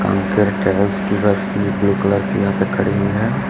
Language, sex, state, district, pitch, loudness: Hindi, male, Chhattisgarh, Raipur, 100 Hz, -17 LUFS